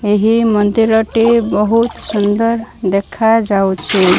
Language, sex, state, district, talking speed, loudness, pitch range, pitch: Odia, female, Odisha, Malkangiri, 100 wpm, -13 LUFS, 205-225 Hz, 215 Hz